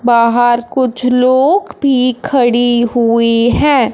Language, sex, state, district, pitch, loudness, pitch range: Hindi, male, Punjab, Fazilka, 245 Hz, -12 LUFS, 235-260 Hz